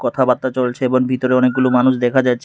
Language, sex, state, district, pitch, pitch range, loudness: Bengali, male, Tripura, West Tripura, 130 Hz, 125-130 Hz, -16 LUFS